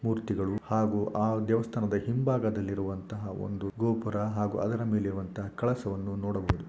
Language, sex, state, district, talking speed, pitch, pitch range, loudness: Kannada, male, Karnataka, Shimoga, 115 wpm, 105 Hz, 100-110 Hz, -31 LUFS